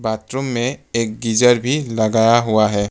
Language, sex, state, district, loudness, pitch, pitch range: Hindi, male, Arunachal Pradesh, Papum Pare, -17 LUFS, 115 Hz, 110-125 Hz